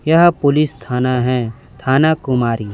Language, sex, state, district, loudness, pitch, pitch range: Hindi, male, Chhattisgarh, Raipur, -16 LUFS, 130 Hz, 125-150 Hz